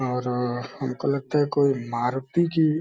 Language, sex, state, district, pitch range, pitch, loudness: Hindi, male, Uttar Pradesh, Deoria, 125-145 Hz, 135 Hz, -25 LUFS